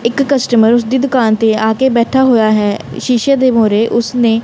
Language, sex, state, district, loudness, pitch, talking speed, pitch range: Punjabi, female, Punjab, Kapurthala, -12 LUFS, 235 Hz, 200 wpm, 220-260 Hz